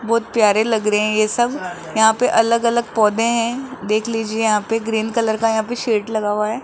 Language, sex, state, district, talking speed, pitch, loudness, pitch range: Hindi, female, Rajasthan, Jaipur, 235 wpm, 225 Hz, -18 LUFS, 215-230 Hz